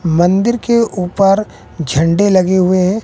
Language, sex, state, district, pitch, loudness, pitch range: Hindi, male, Bihar, West Champaran, 185 Hz, -13 LUFS, 175-205 Hz